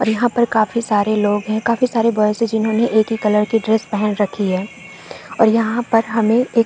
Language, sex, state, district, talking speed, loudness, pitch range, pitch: Hindi, female, Chhattisgarh, Bastar, 235 wpm, -17 LUFS, 210-230 Hz, 220 Hz